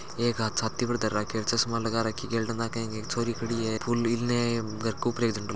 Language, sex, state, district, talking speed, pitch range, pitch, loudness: Marwari, male, Rajasthan, Churu, 280 wpm, 110-120 Hz, 115 Hz, -29 LUFS